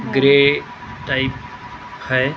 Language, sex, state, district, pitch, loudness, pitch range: Hindi, male, Maharashtra, Gondia, 130 Hz, -17 LUFS, 120-140 Hz